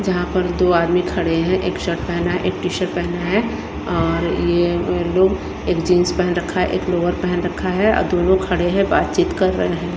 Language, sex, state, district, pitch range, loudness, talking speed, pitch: Hindi, female, Himachal Pradesh, Shimla, 175-185 Hz, -18 LUFS, 215 wpm, 180 Hz